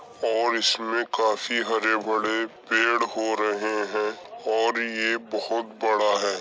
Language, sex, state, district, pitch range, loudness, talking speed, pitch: Hindi, male, Uttar Pradesh, Jyotiba Phule Nagar, 105-115 Hz, -24 LUFS, 120 wpm, 110 Hz